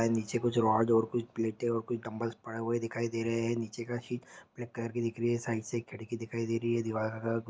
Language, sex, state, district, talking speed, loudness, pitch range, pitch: Hindi, male, Chhattisgarh, Sukma, 295 wpm, -33 LUFS, 115-120 Hz, 115 Hz